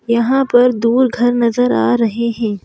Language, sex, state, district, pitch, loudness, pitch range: Hindi, female, Madhya Pradesh, Bhopal, 235 Hz, -14 LUFS, 230-245 Hz